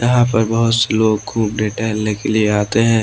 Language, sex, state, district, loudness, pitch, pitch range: Hindi, male, Maharashtra, Washim, -16 LUFS, 110 Hz, 105-115 Hz